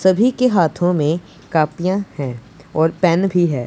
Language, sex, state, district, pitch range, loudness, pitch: Hindi, male, Punjab, Pathankot, 150-190 Hz, -18 LUFS, 170 Hz